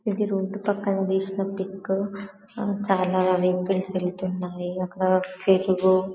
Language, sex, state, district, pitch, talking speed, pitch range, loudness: Telugu, female, Telangana, Karimnagar, 190 Hz, 100 wpm, 185-195 Hz, -25 LUFS